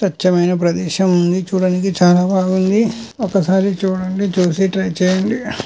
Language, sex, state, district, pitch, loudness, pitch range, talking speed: Telugu, male, Andhra Pradesh, Guntur, 185 Hz, -16 LUFS, 180-195 Hz, 115 wpm